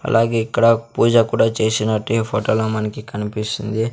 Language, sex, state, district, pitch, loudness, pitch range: Telugu, male, Andhra Pradesh, Sri Satya Sai, 110 Hz, -18 LUFS, 110-115 Hz